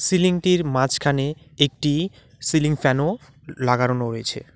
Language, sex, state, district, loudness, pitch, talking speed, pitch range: Bengali, male, West Bengal, Alipurduar, -21 LUFS, 145 Hz, 90 wpm, 130-155 Hz